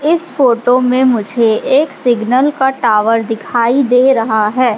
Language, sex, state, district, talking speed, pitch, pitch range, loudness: Hindi, female, Madhya Pradesh, Katni, 150 wpm, 250 Hz, 230-265 Hz, -12 LUFS